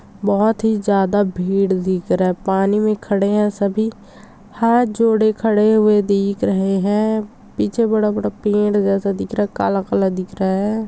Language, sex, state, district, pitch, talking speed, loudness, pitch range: Hindi, female, Chhattisgarh, Sarguja, 205 Hz, 170 wpm, -17 LUFS, 195-215 Hz